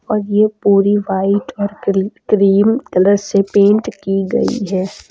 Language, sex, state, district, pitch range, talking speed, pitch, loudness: Hindi, female, Uttar Pradesh, Lucknow, 195-205 Hz, 155 wpm, 200 Hz, -15 LUFS